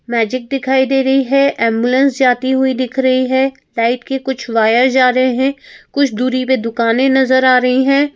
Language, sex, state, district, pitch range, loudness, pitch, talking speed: Hindi, female, Madhya Pradesh, Bhopal, 250-265 Hz, -14 LUFS, 260 Hz, 190 wpm